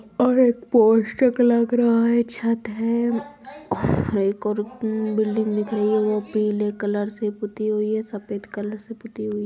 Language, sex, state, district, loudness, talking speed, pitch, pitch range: Angika, female, Bihar, Supaul, -22 LUFS, 170 wpm, 215 Hz, 210-235 Hz